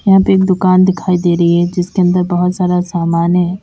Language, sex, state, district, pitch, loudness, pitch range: Hindi, female, Uttar Pradesh, Lalitpur, 180 Hz, -12 LUFS, 175-185 Hz